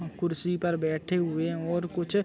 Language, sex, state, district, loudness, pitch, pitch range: Hindi, male, Chhattisgarh, Raigarh, -29 LUFS, 170 Hz, 165-175 Hz